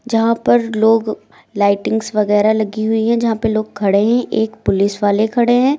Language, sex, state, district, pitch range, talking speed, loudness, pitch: Hindi, female, Uttar Pradesh, Lucknow, 210-230 Hz, 185 wpm, -15 LUFS, 220 Hz